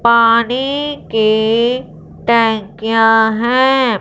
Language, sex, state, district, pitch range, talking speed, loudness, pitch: Hindi, female, Punjab, Fazilka, 225-250 Hz, 60 wpm, -13 LUFS, 230 Hz